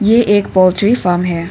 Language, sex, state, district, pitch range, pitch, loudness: Hindi, female, Arunachal Pradesh, Papum Pare, 180-215 Hz, 190 Hz, -13 LUFS